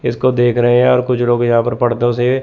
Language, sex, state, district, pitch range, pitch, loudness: Hindi, male, Chandigarh, Chandigarh, 120-125 Hz, 120 Hz, -14 LUFS